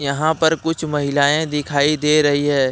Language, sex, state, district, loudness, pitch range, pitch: Hindi, male, Jharkhand, Deoghar, -17 LUFS, 145-155 Hz, 150 Hz